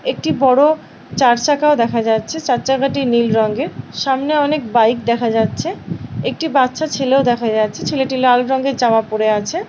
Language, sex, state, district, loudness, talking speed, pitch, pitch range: Bengali, female, West Bengal, Paschim Medinipur, -16 LUFS, 155 wpm, 250 Hz, 230-275 Hz